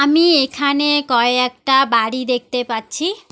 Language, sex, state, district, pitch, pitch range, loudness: Bengali, female, West Bengal, Alipurduar, 265 Hz, 245-290 Hz, -16 LUFS